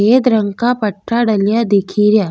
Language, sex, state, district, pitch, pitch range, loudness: Rajasthani, female, Rajasthan, Nagaur, 215 Hz, 205-235 Hz, -14 LUFS